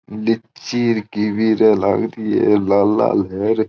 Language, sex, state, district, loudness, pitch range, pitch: Marwari, male, Rajasthan, Churu, -17 LUFS, 105-115 Hz, 110 Hz